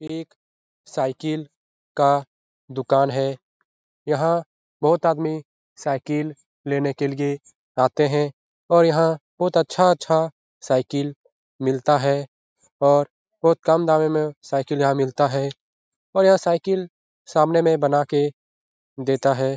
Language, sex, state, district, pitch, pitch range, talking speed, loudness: Hindi, male, Bihar, Jahanabad, 145 Hz, 140-160 Hz, 125 wpm, -21 LUFS